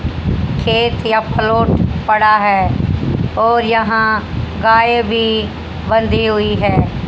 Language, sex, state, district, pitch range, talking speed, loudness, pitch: Hindi, female, Haryana, Jhajjar, 215-225 Hz, 95 wpm, -14 LUFS, 225 Hz